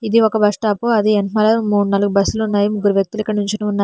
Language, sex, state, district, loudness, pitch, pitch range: Telugu, female, Telangana, Hyderabad, -16 LUFS, 210 Hz, 205-220 Hz